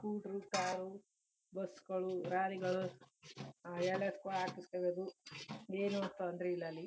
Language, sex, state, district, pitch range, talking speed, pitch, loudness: Kannada, female, Karnataka, Chamarajanagar, 180-195 Hz, 115 wpm, 185 Hz, -41 LUFS